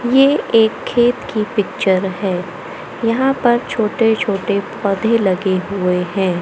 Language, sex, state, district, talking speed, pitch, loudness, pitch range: Hindi, male, Madhya Pradesh, Katni, 130 wpm, 210 Hz, -16 LUFS, 190-235 Hz